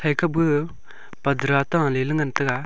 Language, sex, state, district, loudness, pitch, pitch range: Wancho, male, Arunachal Pradesh, Longding, -22 LUFS, 145 Hz, 140-155 Hz